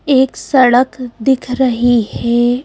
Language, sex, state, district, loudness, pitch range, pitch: Hindi, female, Madhya Pradesh, Bhopal, -13 LUFS, 240-260 Hz, 250 Hz